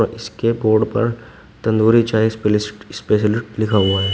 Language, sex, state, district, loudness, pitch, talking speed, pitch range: Hindi, male, Uttar Pradesh, Shamli, -18 LUFS, 110 Hz, 145 wpm, 105-115 Hz